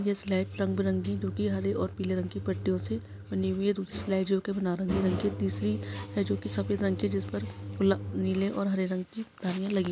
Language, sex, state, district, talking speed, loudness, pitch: Hindi, female, Chhattisgarh, Kabirdham, 225 wpm, -30 LUFS, 100 Hz